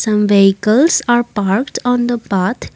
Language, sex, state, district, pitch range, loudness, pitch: English, female, Assam, Kamrup Metropolitan, 200-245 Hz, -14 LUFS, 225 Hz